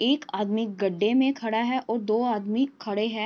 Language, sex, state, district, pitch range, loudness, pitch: Hindi, female, Uttar Pradesh, Varanasi, 215-255 Hz, -26 LUFS, 225 Hz